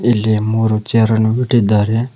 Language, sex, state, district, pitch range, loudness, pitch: Kannada, male, Karnataka, Koppal, 110-115 Hz, -14 LUFS, 110 Hz